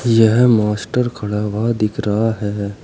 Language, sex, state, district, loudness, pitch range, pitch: Hindi, male, Uttar Pradesh, Saharanpur, -17 LUFS, 105-115 Hz, 110 Hz